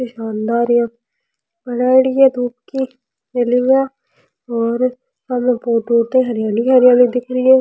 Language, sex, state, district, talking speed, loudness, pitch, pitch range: Rajasthani, male, Rajasthan, Nagaur, 120 wpm, -16 LUFS, 245 Hz, 235-255 Hz